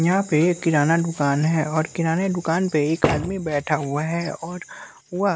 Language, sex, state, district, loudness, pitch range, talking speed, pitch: Hindi, male, Bihar, West Champaran, -22 LUFS, 155-175 Hz, 180 wpm, 165 Hz